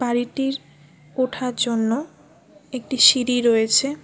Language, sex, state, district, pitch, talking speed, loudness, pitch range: Bengali, female, West Bengal, Alipurduar, 245 Hz, 90 wpm, -19 LUFS, 225-260 Hz